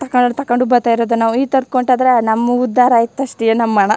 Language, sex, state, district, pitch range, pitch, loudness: Kannada, female, Karnataka, Chamarajanagar, 230-255 Hz, 245 Hz, -14 LUFS